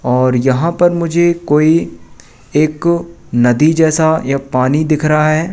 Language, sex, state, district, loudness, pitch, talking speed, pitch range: Hindi, male, Madhya Pradesh, Katni, -13 LUFS, 155 Hz, 140 wpm, 130-165 Hz